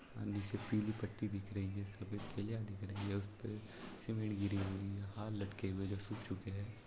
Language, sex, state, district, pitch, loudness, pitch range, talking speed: Hindi, male, Chhattisgarh, Raigarh, 100 Hz, -43 LUFS, 100-105 Hz, 210 wpm